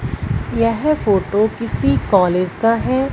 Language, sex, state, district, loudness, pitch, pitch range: Hindi, female, Punjab, Fazilka, -17 LUFS, 205 Hz, 180-230 Hz